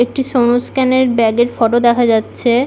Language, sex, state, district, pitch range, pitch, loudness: Bengali, female, West Bengal, Malda, 235-255 Hz, 240 Hz, -13 LUFS